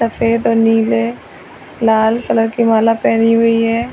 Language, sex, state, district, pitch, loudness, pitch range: Hindi, female, Chhattisgarh, Raigarh, 230 Hz, -14 LUFS, 225-230 Hz